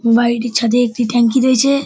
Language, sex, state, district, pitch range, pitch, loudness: Bengali, male, West Bengal, Dakshin Dinajpur, 235-255 Hz, 240 Hz, -14 LUFS